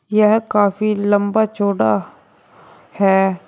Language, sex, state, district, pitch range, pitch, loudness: Hindi, male, Uttar Pradesh, Shamli, 195-215 Hz, 205 Hz, -16 LUFS